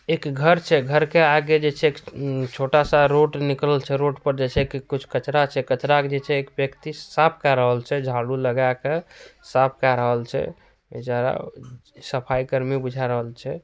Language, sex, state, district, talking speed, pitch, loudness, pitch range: Angika, male, Bihar, Purnia, 175 wpm, 140 Hz, -22 LUFS, 130-145 Hz